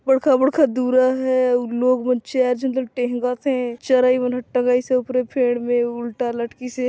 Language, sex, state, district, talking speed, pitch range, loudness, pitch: Chhattisgarhi, female, Chhattisgarh, Sarguja, 185 wpm, 245-255 Hz, -20 LUFS, 250 Hz